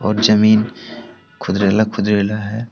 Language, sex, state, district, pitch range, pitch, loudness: Hindi, male, Jharkhand, Deoghar, 100-110 Hz, 105 Hz, -15 LUFS